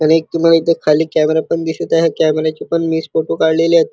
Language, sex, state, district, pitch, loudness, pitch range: Marathi, male, Maharashtra, Chandrapur, 160 Hz, -15 LUFS, 160-165 Hz